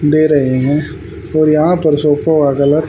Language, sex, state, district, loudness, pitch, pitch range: Hindi, male, Haryana, Rohtak, -12 LUFS, 150 Hz, 140-155 Hz